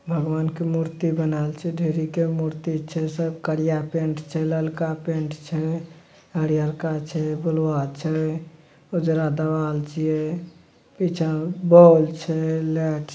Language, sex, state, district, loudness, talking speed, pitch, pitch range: Maithili, male, Bihar, Madhepura, -23 LUFS, 125 wpm, 160 Hz, 155-165 Hz